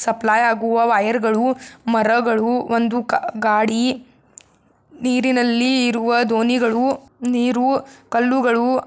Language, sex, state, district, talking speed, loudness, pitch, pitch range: Kannada, female, Karnataka, Belgaum, 75 wpm, -18 LUFS, 240 Hz, 230-250 Hz